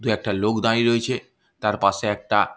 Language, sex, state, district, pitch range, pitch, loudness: Bengali, male, West Bengal, Malda, 105-115 Hz, 110 Hz, -22 LUFS